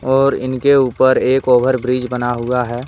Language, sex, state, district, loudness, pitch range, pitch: Hindi, male, Jharkhand, Deoghar, -15 LUFS, 125-130 Hz, 125 Hz